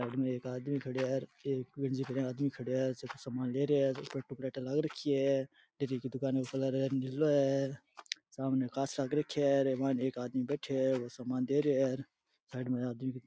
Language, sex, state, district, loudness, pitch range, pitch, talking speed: Rajasthani, male, Rajasthan, Churu, -35 LUFS, 130-140 Hz, 135 Hz, 185 wpm